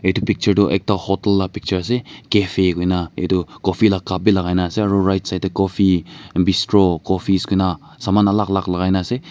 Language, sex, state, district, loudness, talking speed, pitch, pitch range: Nagamese, male, Nagaland, Dimapur, -18 LUFS, 220 wpm, 95 Hz, 95-105 Hz